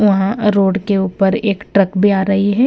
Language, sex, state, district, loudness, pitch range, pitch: Hindi, female, Punjab, Kapurthala, -15 LUFS, 195-205 Hz, 200 Hz